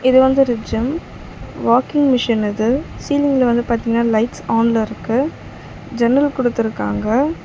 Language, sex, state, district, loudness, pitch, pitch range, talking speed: Tamil, female, Tamil Nadu, Chennai, -17 LUFS, 240 Hz, 230-265 Hz, 120 wpm